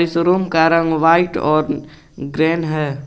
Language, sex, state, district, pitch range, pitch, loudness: Hindi, male, Jharkhand, Garhwa, 155-165 Hz, 160 Hz, -16 LUFS